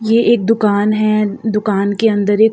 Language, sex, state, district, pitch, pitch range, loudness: Hindi, female, Uttar Pradesh, Jalaun, 215 Hz, 205-225 Hz, -14 LUFS